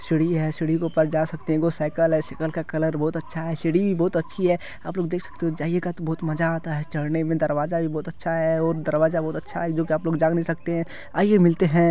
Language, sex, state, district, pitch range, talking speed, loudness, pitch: Hindi, male, Bihar, Supaul, 160-170 Hz, 280 wpm, -24 LUFS, 165 Hz